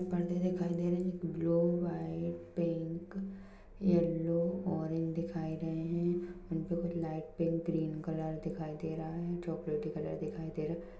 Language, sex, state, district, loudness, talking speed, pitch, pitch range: Hindi, female, Jharkhand, Jamtara, -36 LUFS, 160 wpm, 170 Hz, 165-175 Hz